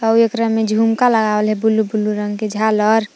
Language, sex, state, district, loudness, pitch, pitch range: Magahi, female, Jharkhand, Palamu, -16 LUFS, 220 Hz, 215-225 Hz